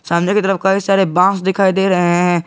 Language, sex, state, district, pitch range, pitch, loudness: Hindi, male, Jharkhand, Garhwa, 180-195 Hz, 190 Hz, -14 LUFS